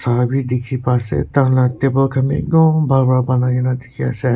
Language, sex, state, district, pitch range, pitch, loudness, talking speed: Nagamese, male, Nagaland, Kohima, 125-135 Hz, 130 Hz, -16 LUFS, 205 wpm